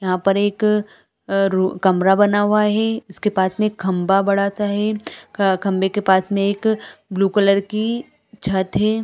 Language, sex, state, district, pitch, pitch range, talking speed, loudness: Hindi, female, Chhattisgarh, Balrampur, 200 Hz, 190-210 Hz, 180 wpm, -19 LUFS